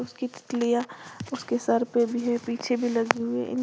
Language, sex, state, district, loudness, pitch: Hindi, female, Uttar Pradesh, Lalitpur, -27 LUFS, 235 Hz